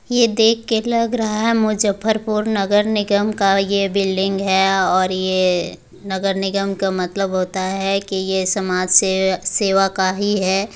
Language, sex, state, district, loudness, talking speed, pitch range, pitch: Hindi, female, Bihar, Muzaffarpur, -18 LUFS, 160 wpm, 190-210 Hz, 195 Hz